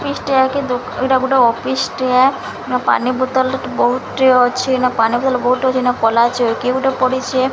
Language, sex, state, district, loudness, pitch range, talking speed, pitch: Odia, female, Odisha, Sambalpur, -15 LUFS, 250-260 Hz, 185 wpm, 255 Hz